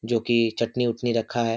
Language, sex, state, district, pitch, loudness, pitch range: Hindi, male, Bihar, Kishanganj, 115 Hz, -24 LUFS, 115-120 Hz